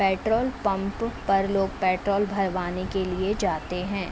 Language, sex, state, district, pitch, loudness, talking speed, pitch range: Hindi, female, Uttar Pradesh, Jalaun, 195 Hz, -26 LUFS, 145 wpm, 185-200 Hz